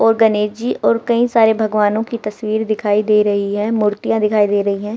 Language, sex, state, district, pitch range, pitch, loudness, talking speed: Hindi, female, Delhi, New Delhi, 210-225 Hz, 215 Hz, -16 LUFS, 215 wpm